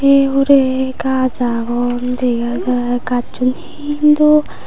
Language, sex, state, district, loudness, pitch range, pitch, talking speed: Chakma, female, Tripura, Unakoti, -15 LUFS, 245-275 Hz, 255 Hz, 105 wpm